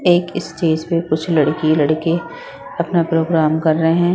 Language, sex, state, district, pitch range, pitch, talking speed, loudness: Hindi, female, Haryana, Rohtak, 155-170 Hz, 165 Hz, 160 wpm, -17 LUFS